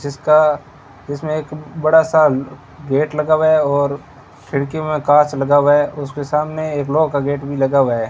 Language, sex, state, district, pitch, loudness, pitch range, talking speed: Hindi, male, Rajasthan, Bikaner, 145 Hz, -16 LUFS, 140-155 Hz, 195 wpm